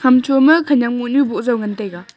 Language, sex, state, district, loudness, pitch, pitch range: Wancho, female, Arunachal Pradesh, Longding, -15 LUFS, 250 Hz, 225-270 Hz